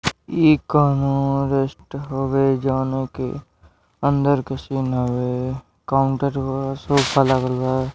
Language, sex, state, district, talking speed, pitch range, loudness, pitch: Bhojpuri, male, Uttar Pradesh, Deoria, 115 wpm, 130-140 Hz, -20 LUFS, 135 Hz